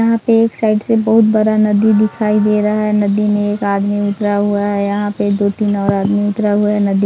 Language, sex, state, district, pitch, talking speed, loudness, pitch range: Hindi, female, Bihar, Bhagalpur, 210 Hz, 240 wpm, -14 LUFS, 205-215 Hz